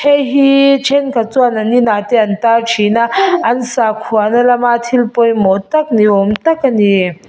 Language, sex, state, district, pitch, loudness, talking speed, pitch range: Mizo, female, Mizoram, Aizawl, 235 Hz, -12 LUFS, 175 wpm, 215-265 Hz